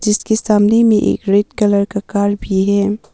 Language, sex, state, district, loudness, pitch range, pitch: Hindi, female, Arunachal Pradesh, Papum Pare, -14 LUFS, 200-215 Hz, 205 Hz